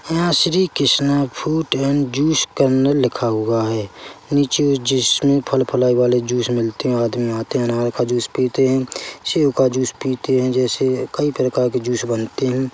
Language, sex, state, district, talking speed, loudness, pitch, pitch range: Hindi, male, Chhattisgarh, Bilaspur, 175 wpm, -18 LUFS, 130 Hz, 120-140 Hz